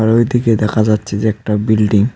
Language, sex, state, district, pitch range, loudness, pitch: Bengali, male, West Bengal, Cooch Behar, 105-110 Hz, -14 LUFS, 110 Hz